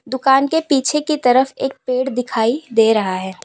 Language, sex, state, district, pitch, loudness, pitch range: Hindi, female, Uttar Pradesh, Lalitpur, 260 Hz, -17 LUFS, 225-270 Hz